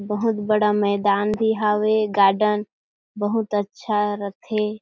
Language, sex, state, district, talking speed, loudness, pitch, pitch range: Chhattisgarhi, female, Chhattisgarh, Jashpur, 110 wpm, -21 LUFS, 210 Hz, 205-215 Hz